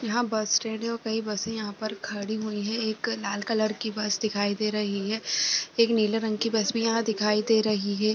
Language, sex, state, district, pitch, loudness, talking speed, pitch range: Hindi, female, Chhattisgarh, Raigarh, 215 Hz, -27 LUFS, 235 wpm, 210-225 Hz